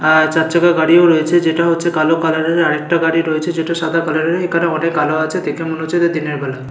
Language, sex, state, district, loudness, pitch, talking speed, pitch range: Bengali, male, West Bengal, Paschim Medinipur, -15 LUFS, 165 Hz, 250 wpm, 155-170 Hz